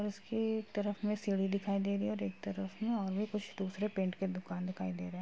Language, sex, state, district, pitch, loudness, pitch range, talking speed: Hindi, female, Bihar, Purnia, 195 Hz, -37 LUFS, 185-210 Hz, 275 wpm